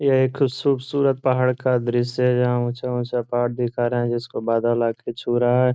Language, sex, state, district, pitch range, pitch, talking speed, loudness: Hindi, male, Bihar, Gopalganj, 120-130 Hz, 125 Hz, 200 wpm, -21 LUFS